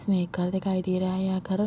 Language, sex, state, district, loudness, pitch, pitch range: Hindi, female, Bihar, Vaishali, -27 LUFS, 185 Hz, 185-190 Hz